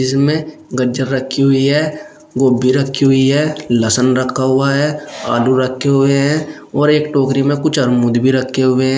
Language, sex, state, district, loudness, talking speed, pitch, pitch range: Hindi, male, Uttar Pradesh, Shamli, -14 LUFS, 175 wpm, 135 Hz, 130-145 Hz